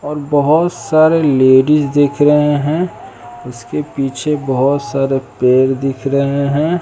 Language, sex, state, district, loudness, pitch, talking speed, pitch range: Hindi, male, Bihar, West Champaran, -14 LUFS, 140 Hz, 130 wpm, 135-150 Hz